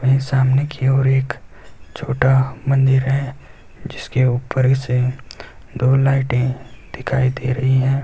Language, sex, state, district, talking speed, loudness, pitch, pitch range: Hindi, male, Bihar, Saharsa, 125 wpm, -18 LUFS, 130 Hz, 130-135 Hz